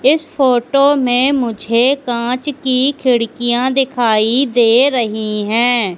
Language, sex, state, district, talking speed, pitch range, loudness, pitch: Hindi, female, Madhya Pradesh, Katni, 110 wpm, 235-270 Hz, -14 LUFS, 245 Hz